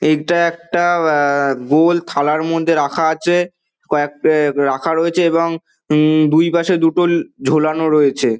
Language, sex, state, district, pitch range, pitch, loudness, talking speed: Bengali, male, West Bengal, Dakshin Dinajpur, 150-170 Hz, 160 Hz, -15 LUFS, 130 wpm